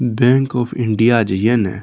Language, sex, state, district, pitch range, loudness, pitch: Maithili, male, Bihar, Saharsa, 110-120 Hz, -16 LUFS, 120 Hz